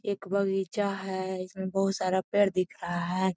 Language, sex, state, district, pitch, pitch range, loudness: Magahi, female, Bihar, Gaya, 190 Hz, 185-195 Hz, -29 LUFS